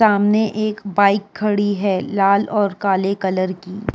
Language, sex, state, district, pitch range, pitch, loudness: Hindi, female, Uttar Pradesh, Jyotiba Phule Nagar, 195-210 Hz, 200 Hz, -18 LUFS